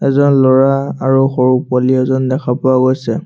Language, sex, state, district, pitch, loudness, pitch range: Assamese, male, Assam, Sonitpur, 130 Hz, -13 LUFS, 130-135 Hz